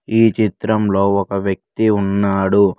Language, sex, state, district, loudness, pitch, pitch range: Telugu, male, Telangana, Mahabubabad, -16 LUFS, 100 Hz, 100-110 Hz